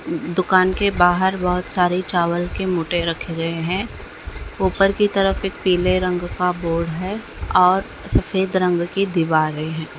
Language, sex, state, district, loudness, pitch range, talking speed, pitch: Hindi, female, Bihar, Jahanabad, -19 LUFS, 170-190 Hz, 155 wpm, 180 Hz